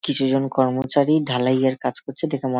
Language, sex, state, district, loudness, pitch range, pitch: Bengali, male, West Bengal, Malda, -21 LUFS, 130-145 Hz, 135 Hz